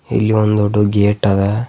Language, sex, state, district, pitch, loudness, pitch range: Kannada, male, Karnataka, Bidar, 105 Hz, -15 LUFS, 100-105 Hz